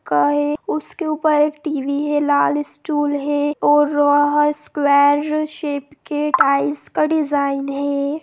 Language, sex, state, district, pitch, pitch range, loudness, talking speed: Hindi, female, Bihar, Darbhanga, 290 Hz, 280-300 Hz, -18 LUFS, 140 wpm